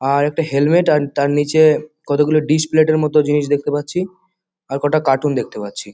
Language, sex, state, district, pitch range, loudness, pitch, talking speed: Bengali, male, West Bengal, Kolkata, 145-155 Hz, -16 LUFS, 150 Hz, 180 wpm